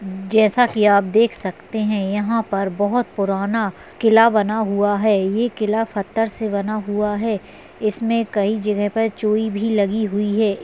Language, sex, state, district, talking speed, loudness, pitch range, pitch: Hindi, female, Maharashtra, Sindhudurg, 170 wpm, -19 LUFS, 205-220 Hz, 210 Hz